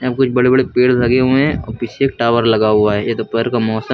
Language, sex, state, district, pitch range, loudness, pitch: Hindi, male, Uttar Pradesh, Lucknow, 110-130 Hz, -14 LUFS, 120 Hz